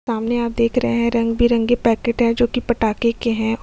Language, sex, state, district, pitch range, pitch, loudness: Hindi, female, Uttar Pradesh, Jyotiba Phule Nagar, 230-240 Hz, 235 Hz, -18 LUFS